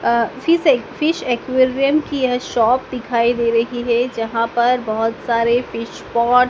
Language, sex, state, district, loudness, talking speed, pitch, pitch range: Hindi, female, Madhya Pradesh, Dhar, -18 LUFS, 165 wpm, 245 Hz, 230-255 Hz